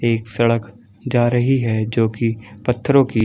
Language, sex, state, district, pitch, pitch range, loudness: Hindi, male, Chhattisgarh, Balrampur, 115 Hz, 110-120 Hz, -19 LUFS